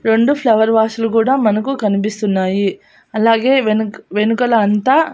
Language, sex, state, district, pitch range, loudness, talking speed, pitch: Telugu, female, Andhra Pradesh, Annamaya, 210-235 Hz, -15 LUFS, 130 wpm, 220 Hz